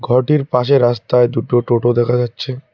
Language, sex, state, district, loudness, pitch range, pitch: Bengali, male, West Bengal, Cooch Behar, -15 LUFS, 120-130 Hz, 125 Hz